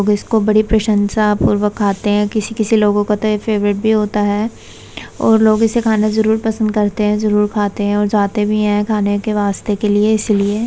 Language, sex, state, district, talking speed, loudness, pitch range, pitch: Hindi, female, Uttar Pradesh, Budaun, 215 wpm, -15 LUFS, 205-220 Hz, 210 Hz